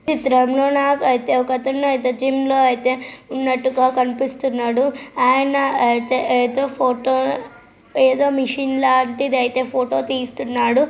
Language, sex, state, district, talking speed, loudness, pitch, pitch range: Telugu, female, Andhra Pradesh, Krishna, 90 wpm, -18 LUFS, 260 Hz, 255-270 Hz